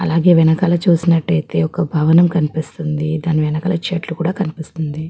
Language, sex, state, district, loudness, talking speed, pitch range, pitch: Telugu, female, Andhra Pradesh, Guntur, -16 LUFS, 140 wpm, 155-175 Hz, 160 Hz